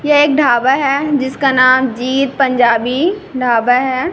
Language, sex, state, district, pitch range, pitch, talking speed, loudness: Hindi, female, Chhattisgarh, Raipur, 250-290 Hz, 265 Hz, 145 wpm, -13 LUFS